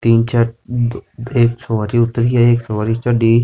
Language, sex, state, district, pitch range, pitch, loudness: Rajasthani, male, Rajasthan, Nagaur, 115-120 Hz, 120 Hz, -16 LUFS